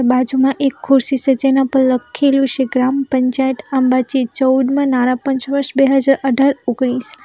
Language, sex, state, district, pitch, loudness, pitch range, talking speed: Gujarati, female, Gujarat, Valsad, 265 Hz, -15 LUFS, 255-275 Hz, 155 wpm